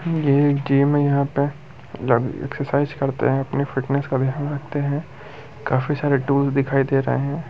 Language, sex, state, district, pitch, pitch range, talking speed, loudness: Hindi, male, Bihar, Muzaffarpur, 140 Hz, 135-145 Hz, 175 wpm, -21 LUFS